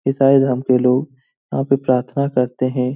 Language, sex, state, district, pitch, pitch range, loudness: Hindi, male, Bihar, Lakhisarai, 130 Hz, 125-135 Hz, -17 LUFS